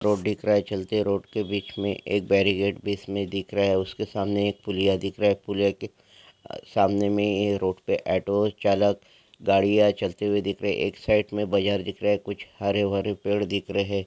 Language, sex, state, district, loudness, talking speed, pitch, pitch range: Hindi, male, Maharashtra, Solapur, -25 LUFS, 215 wpm, 100 Hz, 100-105 Hz